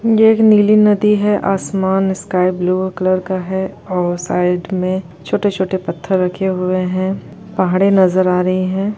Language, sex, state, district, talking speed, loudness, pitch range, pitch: Hindi, female, Bihar, Gopalganj, 155 wpm, -15 LUFS, 185-195 Hz, 190 Hz